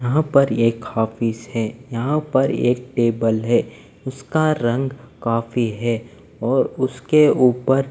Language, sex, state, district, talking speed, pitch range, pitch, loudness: Hindi, male, Maharashtra, Mumbai Suburban, 130 wpm, 115-135 Hz, 120 Hz, -20 LUFS